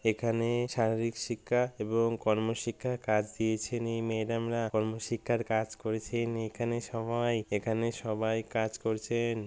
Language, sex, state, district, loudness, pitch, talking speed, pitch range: Bengali, male, West Bengal, Malda, -32 LUFS, 115 Hz, 120 wpm, 110-115 Hz